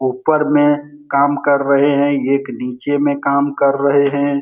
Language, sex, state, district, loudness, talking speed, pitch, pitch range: Hindi, male, Bihar, Lakhisarai, -15 LUFS, 175 wpm, 140 Hz, 140-145 Hz